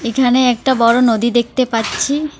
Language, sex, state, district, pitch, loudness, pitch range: Bengali, female, West Bengal, Alipurduar, 245 Hz, -14 LUFS, 235-260 Hz